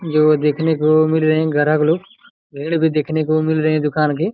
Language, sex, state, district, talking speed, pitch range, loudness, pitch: Hindi, male, Chhattisgarh, Raigarh, 220 wpm, 150-160 Hz, -16 LUFS, 155 Hz